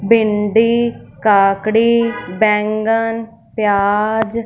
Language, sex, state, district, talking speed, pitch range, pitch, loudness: Hindi, female, Punjab, Fazilka, 55 wpm, 210-230 Hz, 220 Hz, -15 LUFS